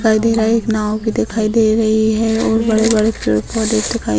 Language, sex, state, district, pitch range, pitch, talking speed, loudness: Hindi, female, Bihar, Purnia, 215-225 Hz, 220 Hz, 200 wpm, -15 LUFS